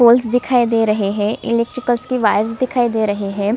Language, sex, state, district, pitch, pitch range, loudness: Hindi, female, Chhattisgarh, Sukma, 235 Hz, 210-245 Hz, -17 LUFS